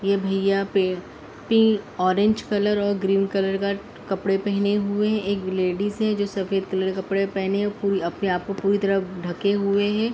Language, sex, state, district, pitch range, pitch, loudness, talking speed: Hindi, female, Uttar Pradesh, Deoria, 195-205 Hz, 195 Hz, -23 LUFS, 170 wpm